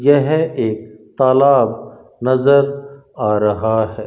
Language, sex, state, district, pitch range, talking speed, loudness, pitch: Hindi, male, Rajasthan, Bikaner, 110-140 Hz, 105 wpm, -15 LUFS, 130 Hz